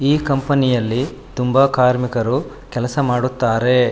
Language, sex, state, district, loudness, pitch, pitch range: Kannada, male, Karnataka, Shimoga, -18 LUFS, 125 Hz, 125-135 Hz